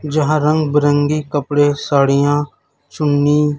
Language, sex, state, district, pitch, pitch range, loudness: Hindi, male, Chhattisgarh, Raipur, 145 Hz, 145-150 Hz, -15 LUFS